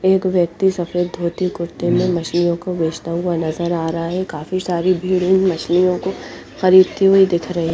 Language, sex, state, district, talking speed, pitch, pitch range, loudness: Hindi, female, Chandigarh, Chandigarh, 195 wpm, 175 Hz, 170-185 Hz, -17 LUFS